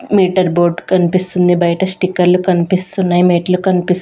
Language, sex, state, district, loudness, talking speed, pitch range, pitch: Telugu, female, Andhra Pradesh, Sri Satya Sai, -13 LUFS, 120 wpm, 175-185 Hz, 180 Hz